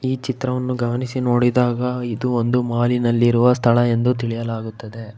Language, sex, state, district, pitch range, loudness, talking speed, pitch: Kannada, male, Karnataka, Bangalore, 120-125 Hz, -19 LUFS, 125 wpm, 120 Hz